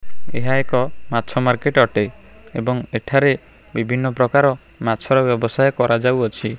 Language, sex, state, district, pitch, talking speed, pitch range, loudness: Odia, male, Odisha, Khordha, 125 Hz, 110 wpm, 115-135 Hz, -19 LUFS